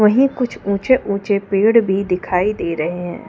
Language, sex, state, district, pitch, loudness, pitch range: Hindi, female, Delhi, New Delhi, 200 Hz, -17 LUFS, 180-220 Hz